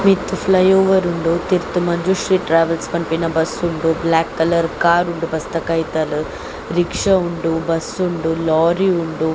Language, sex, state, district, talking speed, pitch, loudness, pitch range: Tulu, female, Karnataka, Dakshina Kannada, 145 wpm, 165 Hz, -17 LUFS, 165-180 Hz